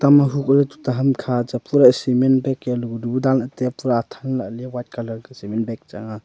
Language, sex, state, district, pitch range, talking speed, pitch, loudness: Wancho, male, Arunachal Pradesh, Longding, 120-135 Hz, 220 wpm, 125 Hz, -20 LUFS